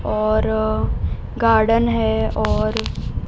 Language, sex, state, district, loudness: Hindi, female, Uttar Pradesh, Budaun, -19 LUFS